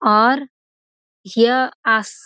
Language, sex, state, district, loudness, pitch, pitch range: Hindi, female, Bihar, Gopalganj, -17 LUFS, 230 Hz, 215-255 Hz